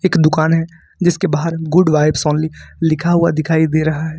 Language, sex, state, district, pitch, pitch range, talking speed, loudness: Hindi, male, Jharkhand, Ranchi, 160 Hz, 155-170 Hz, 200 wpm, -15 LUFS